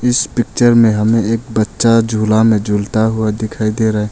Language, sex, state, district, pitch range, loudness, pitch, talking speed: Hindi, male, Arunachal Pradesh, Longding, 110-115 Hz, -14 LUFS, 110 Hz, 190 wpm